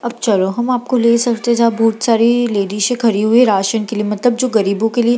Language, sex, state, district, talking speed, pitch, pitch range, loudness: Hindi, female, Bihar, Gaya, 265 wpm, 230 Hz, 215-240 Hz, -14 LUFS